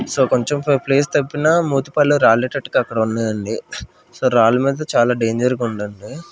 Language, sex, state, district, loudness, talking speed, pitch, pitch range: Telugu, male, Andhra Pradesh, Manyam, -17 LUFS, 150 wpm, 130 Hz, 115-145 Hz